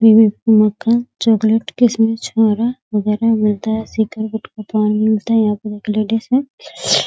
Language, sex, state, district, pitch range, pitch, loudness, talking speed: Hindi, female, Bihar, Muzaffarpur, 215-225 Hz, 220 Hz, -16 LUFS, 155 wpm